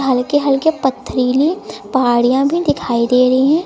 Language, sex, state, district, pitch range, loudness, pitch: Hindi, female, Uttar Pradesh, Lucknow, 250-290 Hz, -15 LUFS, 265 Hz